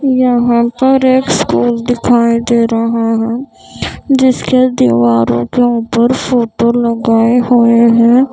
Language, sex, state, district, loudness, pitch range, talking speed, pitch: Hindi, female, Maharashtra, Mumbai Suburban, -11 LUFS, 230-250 Hz, 115 wpm, 235 Hz